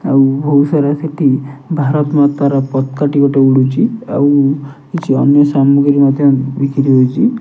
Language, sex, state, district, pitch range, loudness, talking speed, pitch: Odia, male, Odisha, Nuapada, 135-145 Hz, -12 LUFS, 135 wpm, 140 Hz